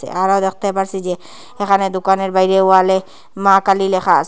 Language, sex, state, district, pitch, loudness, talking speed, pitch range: Bengali, female, Assam, Hailakandi, 190 Hz, -15 LUFS, 170 wpm, 190-195 Hz